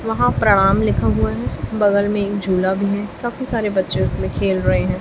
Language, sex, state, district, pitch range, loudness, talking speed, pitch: Hindi, female, Chhattisgarh, Raipur, 185-205 Hz, -18 LUFS, 215 wpm, 200 Hz